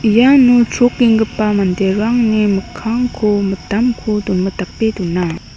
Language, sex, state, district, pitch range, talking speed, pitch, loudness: Garo, female, Meghalaya, North Garo Hills, 195-235 Hz, 75 wpm, 215 Hz, -14 LUFS